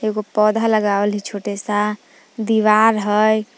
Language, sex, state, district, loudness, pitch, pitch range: Magahi, female, Jharkhand, Palamu, -17 LUFS, 215 Hz, 205-215 Hz